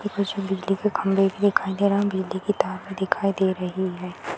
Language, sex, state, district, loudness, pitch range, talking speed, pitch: Hindi, female, Bihar, Purnia, -24 LUFS, 190-200 Hz, 235 wpm, 195 Hz